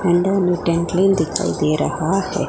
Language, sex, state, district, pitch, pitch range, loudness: Hindi, female, Gujarat, Gandhinagar, 175 Hz, 170-190 Hz, -18 LUFS